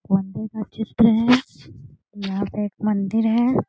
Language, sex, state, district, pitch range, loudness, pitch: Hindi, female, Bihar, Gaya, 200-225 Hz, -21 LUFS, 215 Hz